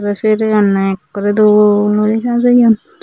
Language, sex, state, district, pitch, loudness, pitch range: Chakma, female, Tripura, Unakoti, 210 Hz, -12 LUFS, 205-220 Hz